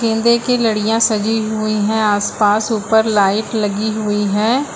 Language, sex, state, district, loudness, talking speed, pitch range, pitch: Hindi, female, Uttar Pradesh, Lucknow, -16 LUFS, 150 wpm, 210-225 Hz, 220 Hz